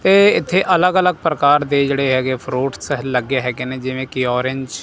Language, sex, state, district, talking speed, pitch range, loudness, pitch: Punjabi, male, Punjab, Kapurthala, 200 wpm, 130-165 Hz, -17 LUFS, 135 Hz